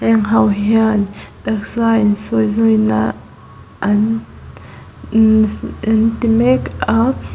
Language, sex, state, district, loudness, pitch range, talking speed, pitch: Mizo, female, Mizoram, Aizawl, -15 LUFS, 205-225 Hz, 90 wpm, 220 Hz